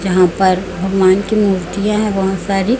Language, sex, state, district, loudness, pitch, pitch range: Hindi, female, Chhattisgarh, Raipur, -15 LUFS, 195 Hz, 185-200 Hz